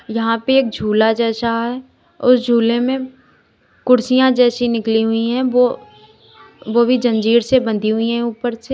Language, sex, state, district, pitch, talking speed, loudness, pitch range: Hindi, female, Uttar Pradesh, Lalitpur, 235 Hz, 165 wpm, -16 LUFS, 225-250 Hz